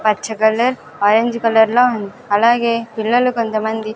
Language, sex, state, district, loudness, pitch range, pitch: Telugu, female, Andhra Pradesh, Sri Satya Sai, -16 LUFS, 220-235 Hz, 220 Hz